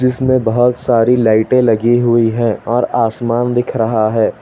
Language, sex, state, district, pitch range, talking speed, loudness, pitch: Hindi, male, Chhattisgarh, Bastar, 115-125 Hz, 165 wpm, -13 LUFS, 120 Hz